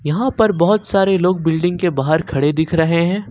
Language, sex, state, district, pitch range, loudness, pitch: Hindi, male, Jharkhand, Ranchi, 160-195 Hz, -16 LUFS, 170 Hz